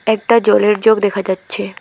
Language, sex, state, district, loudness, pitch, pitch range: Bengali, female, West Bengal, Alipurduar, -14 LUFS, 210 Hz, 200-220 Hz